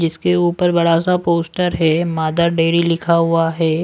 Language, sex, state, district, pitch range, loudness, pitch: Hindi, male, Delhi, New Delhi, 165-175 Hz, -16 LUFS, 170 Hz